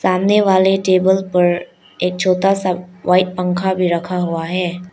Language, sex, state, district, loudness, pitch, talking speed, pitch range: Hindi, female, Arunachal Pradesh, Lower Dibang Valley, -16 LUFS, 180 Hz, 160 wpm, 180-190 Hz